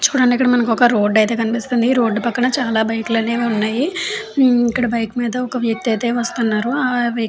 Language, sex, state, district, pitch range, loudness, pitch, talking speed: Telugu, female, Andhra Pradesh, Chittoor, 225-250 Hz, -17 LUFS, 235 Hz, 205 wpm